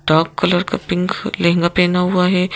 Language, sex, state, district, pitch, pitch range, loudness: Hindi, female, Madhya Pradesh, Bhopal, 180 Hz, 175-185 Hz, -16 LUFS